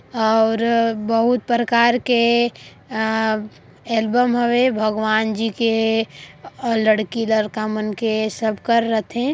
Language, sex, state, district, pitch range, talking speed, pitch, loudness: Chhattisgarhi, female, Chhattisgarh, Sarguja, 220-235 Hz, 115 wpm, 225 Hz, -19 LUFS